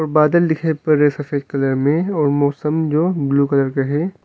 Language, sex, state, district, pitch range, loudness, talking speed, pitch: Hindi, male, Arunachal Pradesh, Longding, 140-160 Hz, -17 LUFS, 185 wpm, 150 Hz